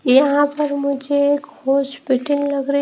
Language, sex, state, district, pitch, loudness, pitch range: Hindi, female, Himachal Pradesh, Shimla, 285 Hz, -18 LUFS, 275-285 Hz